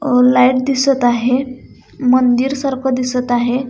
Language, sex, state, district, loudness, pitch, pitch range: Marathi, female, Maharashtra, Dhule, -14 LUFS, 255 Hz, 250-265 Hz